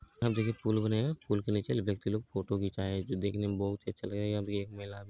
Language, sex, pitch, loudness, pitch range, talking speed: Maithili, male, 100 Hz, -34 LUFS, 100-110 Hz, 245 wpm